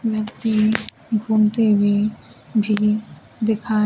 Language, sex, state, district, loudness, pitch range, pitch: Hindi, female, Bihar, Kaimur, -20 LUFS, 210-220 Hz, 215 Hz